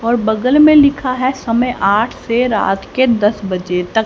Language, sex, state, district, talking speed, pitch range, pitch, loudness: Hindi, female, Haryana, Charkhi Dadri, 190 wpm, 210-255 Hz, 235 Hz, -14 LUFS